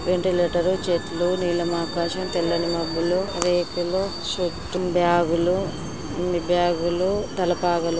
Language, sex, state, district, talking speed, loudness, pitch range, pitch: Telugu, female, Andhra Pradesh, Srikakulam, 85 wpm, -23 LUFS, 170-180 Hz, 175 Hz